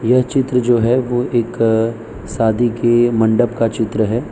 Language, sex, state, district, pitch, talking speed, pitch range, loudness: Hindi, male, Gujarat, Valsad, 115 Hz, 165 wpm, 115-120 Hz, -16 LUFS